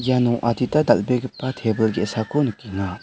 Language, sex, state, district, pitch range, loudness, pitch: Garo, male, Meghalaya, West Garo Hills, 110-130 Hz, -21 LUFS, 120 Hz